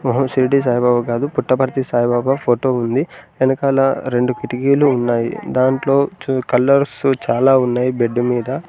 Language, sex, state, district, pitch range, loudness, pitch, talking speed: Telugu, male, Andhra Pradesh, Sri Satya Sai, 120-135 Hz, -16 LUFS, 130 Hz, 125 wpm